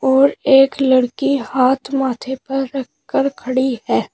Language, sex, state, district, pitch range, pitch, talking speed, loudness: Hindi, female, Uttar Pradesh, Shamli, 260-270 Hz, 265 Hz, 145 wpm, -17 LUFS